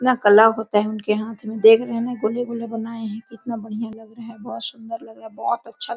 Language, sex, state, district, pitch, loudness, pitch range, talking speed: Hindi, female, Jharkhand, Sahebganj, 225 Hz, -20 LUFS, 215-230 Hz, 210 wpm